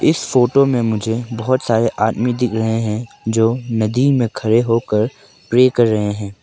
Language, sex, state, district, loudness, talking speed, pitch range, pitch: Hindi, male, Arunachal Pradesh, Papum Pare, -17 LUFS, 175 wpm, 110-125 Hz, 115 Hz